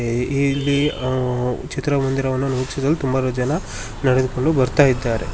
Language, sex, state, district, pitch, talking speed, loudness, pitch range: Kannada, male, Karnataka, Shimoga, 130 Hz, 110 wpm, -20 LUFS, 125-140 Hz